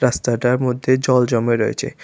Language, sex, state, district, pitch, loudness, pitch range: Bengali, male, Tripura, West Tripura, 125 Hz, -18 LUFS, 120-130 Hz